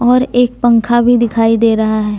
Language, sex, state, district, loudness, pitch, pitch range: Hindi, female, Jharkhand, Deoghar, -12 LUFS, 235 Hz, 225-245 Hz